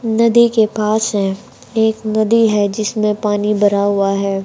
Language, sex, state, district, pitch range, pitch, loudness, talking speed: Hindi, female, Haryana, Jhajjar, 205-220 Hz, 210 Hz, -15 LUFS, 160 wpm